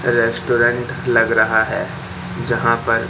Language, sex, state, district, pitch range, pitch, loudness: Hindi, male, Madhya Pradesh, Katni, 115-120 Hz, 115 Hz, -17 LUFS